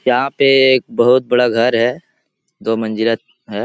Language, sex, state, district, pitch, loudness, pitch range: Hindi, male, Bihar, Jahanabad, 125 Hz, -14 LUFS, 115-130 Hz